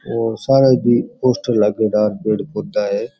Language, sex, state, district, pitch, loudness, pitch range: Rajasthani, male, Rajasthan, Churu, 120 Hz, -17 LUFS, 110-135 Hz